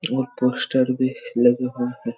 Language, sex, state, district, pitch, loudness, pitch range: Hindi, male, Chhattisgarh, Raigarh, 125 Hz, -22 LUFS, 120-130 Hz